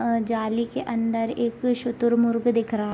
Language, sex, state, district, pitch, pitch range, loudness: Hindi, female, Bihar, East Champaran, 235 Hz, 230-235 Hz, -24 LUFS